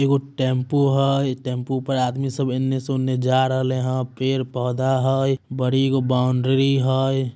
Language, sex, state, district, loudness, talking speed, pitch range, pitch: Magahi, male, Bihar, Samastipur, -21 LUFS, 145 wpm, 130-135 Hz, 130 Hz